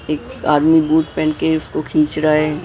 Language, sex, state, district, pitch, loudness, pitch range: Hindi, male, Maharashtra, Mumbai Suburban, 155 Hz, -16 LUFS, 155-160 Hz